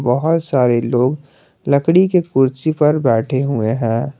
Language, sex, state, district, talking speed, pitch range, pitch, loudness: Hindi, male, Jharkhand, Garhwa, 145 wpm, 125-155 Hz, 135 Hz, -16 LUFS